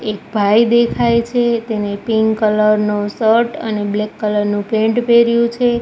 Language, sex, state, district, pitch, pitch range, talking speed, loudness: Gujarati, female, Gujarat, Gandhinagar, 220 Hz, 210-235 Hz, 165 wpm, -15 LUFS